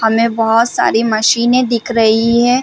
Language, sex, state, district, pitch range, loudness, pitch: Hindi, female, Chhattisgarh, Bilaspur, 225-235 Hz, -12 LUFS, 230 Hz